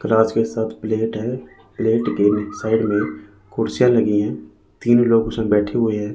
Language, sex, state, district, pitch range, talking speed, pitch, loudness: Hindi, male, Chandigarh, Chandigarh, 105-115 Hz, 185 wpm, 110 Hz, -19 LUFS